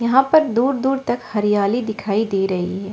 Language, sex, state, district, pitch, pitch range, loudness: Hindi, female, Bihar, Katihar, 220 Hz, 200-260 Hz, -19 LUFS